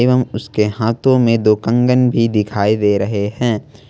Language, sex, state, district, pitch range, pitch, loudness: Hindi, male, Jharkhand, Ranchi, 105-125 Hz, 115 Hz, -15 LUFS